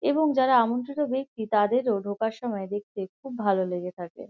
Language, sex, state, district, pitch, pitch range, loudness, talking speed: Bengali, female, West Bengal, Kolkata, 220 Hz, 200-260 Hz, -26 LUFS, 165 wpm